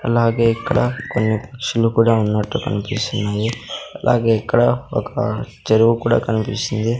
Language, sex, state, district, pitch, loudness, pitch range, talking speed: Telugu, male, Andhra Pradesh, Sri Satya Sai, 115 Hz, -18 LUFS, 110-120 Hz, 110 wpm